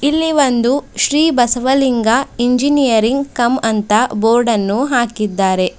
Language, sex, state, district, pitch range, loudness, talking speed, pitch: Kannada, female, Karnataka, Bidar, 225-270 Hz, -14 LUFS, 105 wpm, 245 Hz